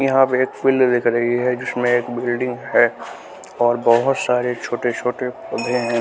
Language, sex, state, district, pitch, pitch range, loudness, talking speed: Hindi, male, Bihar, West Champaran, 125 Hz, 120-125 Hz, -19 LUFS, 180 wpm